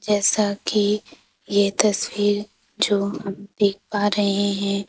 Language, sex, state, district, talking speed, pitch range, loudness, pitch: Hindi, female, Madhya Pradesh, Bhopal, 125 wpm, 200-210 Hz, -21 LUFS, 205 Hz